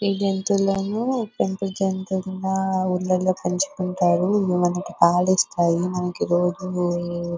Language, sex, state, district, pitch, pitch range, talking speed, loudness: Telugu, female, Telangana, Nalgonda, 185 Hz, 180-195 Hz, 100 wpm, -22 LUFS